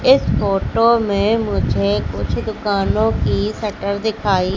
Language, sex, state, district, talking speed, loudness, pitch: Hindi, female, Madhya Pradesh, Katni, 120 wpm, -18 LUFS, 200 Hz